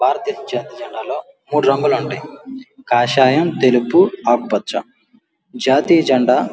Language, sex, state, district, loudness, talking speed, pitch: Telugu, male, Andhra Pradesh, Guntur, -16 LUFS, 120 wpm, 135 Hz